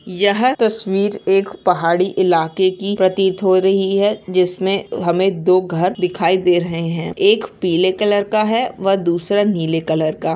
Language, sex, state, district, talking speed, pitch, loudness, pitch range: Hindi, female, Uttarakhand, Tehri Garhwal, 160 wpm, 190 Hz, -16 LUFS, 175-200 Hz